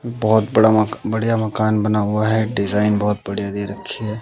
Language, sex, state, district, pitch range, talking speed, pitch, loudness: Hindi, male, Bihar, West Champaran, 105-110 Hz, 200 wpm, 110 Hz, -18 LUFS